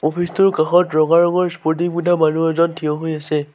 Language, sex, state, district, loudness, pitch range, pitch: Assamese, male, Assam, Sonitpur, -17 LUFS, 155-175 Hz, 165 Hz